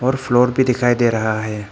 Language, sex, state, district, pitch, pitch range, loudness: Hindi, male, Arunachal Pradesh, Papum Pare, 120 Hz, 110-125 Hz, -17 LUFS